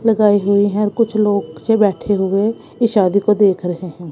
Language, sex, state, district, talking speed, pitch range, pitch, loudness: Hindi, female, Punjab, Kapurthala, 220 wpm, 190-210 Hz, 205 Hz, -16 LUFS